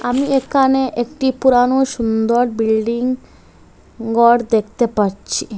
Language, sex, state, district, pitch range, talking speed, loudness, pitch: Bengali, female, Assam, Hailakandi, 225-265 Hz, 95 wpm, -16 LUFS, 240 Hz